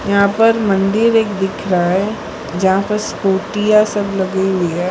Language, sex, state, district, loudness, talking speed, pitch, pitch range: Hindi, female, Gujarat, Valsad, -15 LUFS, 170 wpm, 200 Hz, 190-210 Hz